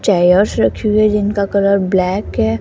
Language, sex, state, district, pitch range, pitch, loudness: Hindi, female, Rajasthan, Jaipur, 185-205 Hz, 200 Hz, -14 LUFS